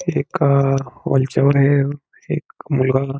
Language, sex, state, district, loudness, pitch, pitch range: Marathi, male, Maharashtra, Pune, -18 LUFS, 135 Hz, 135-140 Hz